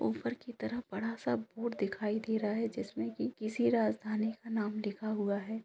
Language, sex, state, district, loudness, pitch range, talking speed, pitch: Hindi, female, Bihar, Saran, -35 LUFS, 210-230 Hz, 200 wpm, 220 Hz